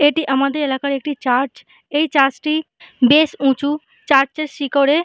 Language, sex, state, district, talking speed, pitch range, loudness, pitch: Bengali, female, West Bengal, Malda, 145 wpm, 275-305 Hz, -17 LUFS, 285 Hz